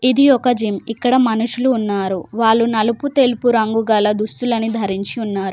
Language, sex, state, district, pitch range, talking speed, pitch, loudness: Telugu, female, Telangana, Komaram Bheem, 210-245 Hz, 150 wpm, 225 Hz, -17 LUFS